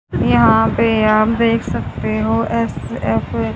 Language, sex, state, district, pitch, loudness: Hindi, female, Haryana, Charkhi Dadri, 120 Hz, -16 LUFS